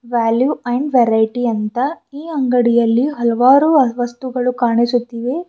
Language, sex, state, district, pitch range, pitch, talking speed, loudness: Kannada, female, Karnataka, Bidar, 235-265 Hz, 245 Hz, 100 wpm, -16 LUFS